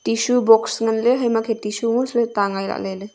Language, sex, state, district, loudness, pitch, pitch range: Wancho, female, Arunachal Pradesh, Longding, -19 LUFS, 225 Hz, 210-235 Hz